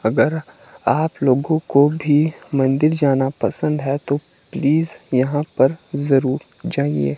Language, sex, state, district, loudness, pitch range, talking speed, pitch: Hindi, male, Himachal Pradesh, Shimla, -19 LUFS, 135-155 Hz, 125 wpm, 140 Hz